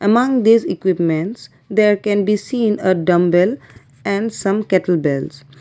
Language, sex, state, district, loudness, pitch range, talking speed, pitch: English, female, Assam, Kamrup Metropolitan, -17 LUFS, 175-215 Hz, 130 wpm, 200 Hz